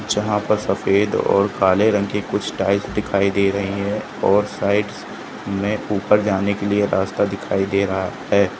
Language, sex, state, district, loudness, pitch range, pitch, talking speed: Hindi, male, Uttar Pradesh, Lucknow, -19 LUFS, 100-105 Hz, 100 Hz, 175 wpm